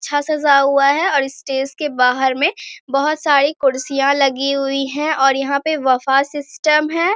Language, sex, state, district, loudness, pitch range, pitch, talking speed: Hindi, female, Bihar, Bhagalpur, -16 LUFS, 270-300 Hz, 280 Hz, 175 wpm